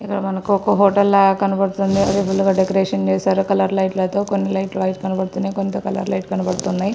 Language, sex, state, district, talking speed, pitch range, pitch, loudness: Telugu, female, Andhra Pradesh, Srikakulam, 200 wpm, 190-195 Hz, 195 Hz, -18 LUFS